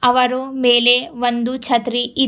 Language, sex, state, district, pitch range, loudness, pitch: Kannada, female, Karnataka, Bidar, 240-255 Hz, -16 LUFS, 245 Hz